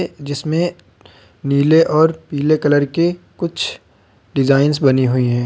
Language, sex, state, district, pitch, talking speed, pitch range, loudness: Hindi, male, Uttar Pradesh, Lucknow, 145 Hz, 120 wpm, 135-160 Hz, -16 LUFS